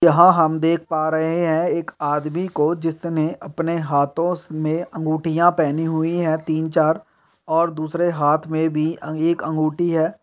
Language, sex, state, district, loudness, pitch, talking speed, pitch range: Hindi, male, Uttar Pradesh, Etah, -20 LUFS, 160 Hz, 165 wpm, 155-170 Hz